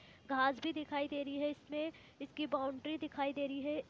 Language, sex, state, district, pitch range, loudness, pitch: Hindi, female, Jharkhand, Jamtara, 275-300 Hz, -39 LUFS, 290 Hz